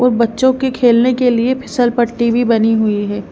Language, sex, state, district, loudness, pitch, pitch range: Hindi, female, Haryana, Rohtak, -14 LUFS, 240 Hz, 230-250 Hz